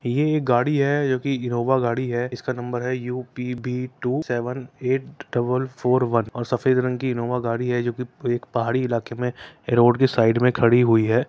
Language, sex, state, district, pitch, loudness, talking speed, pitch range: Hindi, male, Uttar Pradesh, Etah, 125 Hz, -22 LUFS, 195 wpm, 120-130 Hz